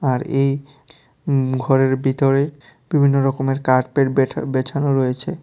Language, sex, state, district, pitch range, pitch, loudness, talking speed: Bengali, male, Tripura, West Tripura, 130-140 Hz, 135 Hz, -19 LUFS, 100 wpm